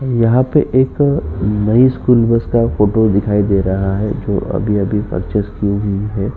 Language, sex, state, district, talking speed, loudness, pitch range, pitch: Hindi, male, Uttar Pradesh, Jyotiba Phule Nagar, 170 wpm, -15 LUFS, 100-115 Hz, 105 Hz